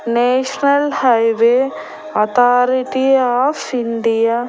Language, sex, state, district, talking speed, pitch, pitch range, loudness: Telugu, female, Andhra Pradesh, Annamaya, 80 wpm, 245 Hz, 230-265 Hz, -15 LUFS